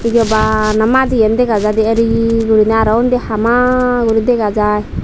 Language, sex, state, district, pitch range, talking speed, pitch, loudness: Chakma, female, Tripura, Dhalai, 215-240 Hz, 165 wpm, 225 Hz, -13 LUFS